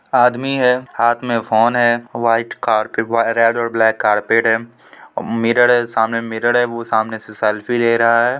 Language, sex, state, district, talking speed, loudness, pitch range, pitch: Hindi, female, Bihar, Supaul, 165 wpm, -16 LUFS, 115-120 Hz, 115 Hz